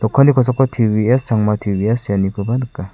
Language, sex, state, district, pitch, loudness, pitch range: Garo, male, Meghalaya, South Garo Hills, 110 Hz, -16 LUFS, 105-125 Hz